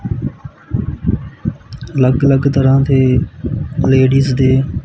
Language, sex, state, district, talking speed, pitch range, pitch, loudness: Punjabi, male, Punjab, Kapurthala, 75 wpm, 130-135 Hz, 135 Hz, -14 LUFS